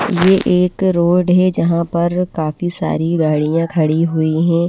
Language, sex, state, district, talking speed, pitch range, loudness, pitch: Hindi, female, Maharashtra, Mumbai Suburban, 155 wpm, 160-180 Hz, -15 LUFS, 170 Hz